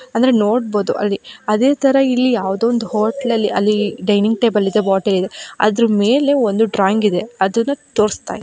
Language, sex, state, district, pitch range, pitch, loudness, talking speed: Kannada, female, Karnataka, Dharwad, 205-240 Hz, 215 Hz, -16 LUFS, 155 wpm